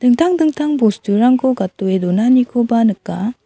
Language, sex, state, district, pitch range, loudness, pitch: Garo, female, Meghalaya, South Garo Hills, 205-255 Hz, -15 LUFS, 240 Hz